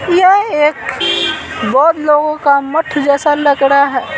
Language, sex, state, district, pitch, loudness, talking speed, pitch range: Hindi, female, Bihar, Patna, 295 Hz, -12 LUFS, 145 wpm, 280-320 Hz